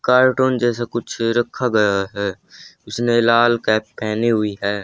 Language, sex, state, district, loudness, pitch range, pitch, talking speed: Hindi, male, Haryana, Rohtak, -18 LUFS, 105-120 Hz, 115 Hz, 150 wpm